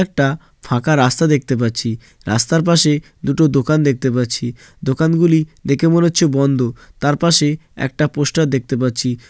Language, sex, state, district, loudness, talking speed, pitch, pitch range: Bengali, male, West Bengal, Jalpaiguri, -16 LUFS, 150 wpm, 140 Hz, 125-160 Hz